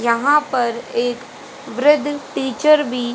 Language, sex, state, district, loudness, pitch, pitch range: Hindi, female, Haryana, Jhajjar, -17 LUFS, 260 Hz, 240-295 Hz